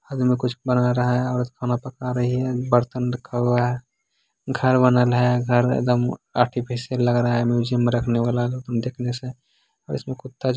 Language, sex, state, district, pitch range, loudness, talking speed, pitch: Angika, male, Bihar, Begusarai, 120-125 Hz, -22 LUFS, 210 wpm, 125 Hz